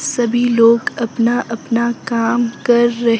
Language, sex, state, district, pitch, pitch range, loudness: Hindi, female, Himachal Pradesh, Shimla, 235 Hz, 230-240 Hz, -15 LUFS